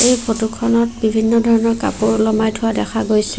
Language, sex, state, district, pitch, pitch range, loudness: Assamese, female, Assam, Sonitpur, 225 Hz, 220-230 Hz, -16 LUFS